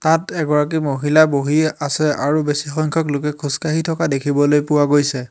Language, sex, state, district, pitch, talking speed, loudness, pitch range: Assamese, male, Assam, Hailakandi, 150 Hz, 170 wpm, -17 LUFS, 145-155 Hz